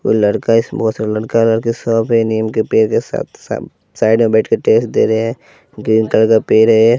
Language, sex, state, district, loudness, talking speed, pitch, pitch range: Hindi, male, Bihar, West Champaran, -14 LUFS, 215 wpm, 110 Hz, 110-115 Hz